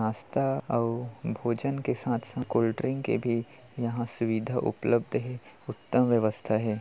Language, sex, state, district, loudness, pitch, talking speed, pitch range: Hindi, male, Chhattisgarh, Kabirdham, -29 LUFS, 120 Hz, 150 wpm, 115-125 Hz